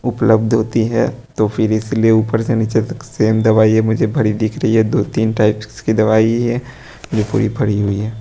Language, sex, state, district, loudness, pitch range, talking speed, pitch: Hindi, male, Bihar, West Champaran, -15 LUFS, 110-115 Hz, 205 wpm, 110 Hz